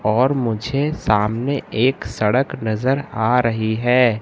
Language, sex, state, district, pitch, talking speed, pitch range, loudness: Hindi, male, Madhya Pradesh, Katni, 120 Hz, 130 wpm, 110-135 Hz, -19 LUFS